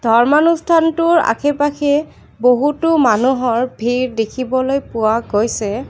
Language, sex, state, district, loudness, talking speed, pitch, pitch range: Assamese, female, Assam, Kamrup Metropolitan, -15 LUFS, 100 wpm, 255 Hz, 230-295 Hz